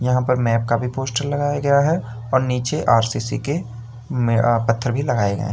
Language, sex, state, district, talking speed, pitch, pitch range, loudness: Hindi, male, Uttar Pradesh, Lalitpur, 215 wpm, 125 Hz, 115-135 Hz, -20 LUFS